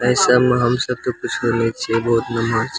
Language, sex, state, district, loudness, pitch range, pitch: Maithili, male, Bihar, Samastipur, -18 LUFS, 115-125 Hz, 120 Hz